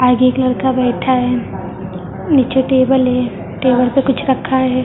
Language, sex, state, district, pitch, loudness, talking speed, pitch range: Hindi, female, Maharashtra, Mumbai Suburban, 255 Hz, -14 LUFS, 160 wpm, 250-265 Hz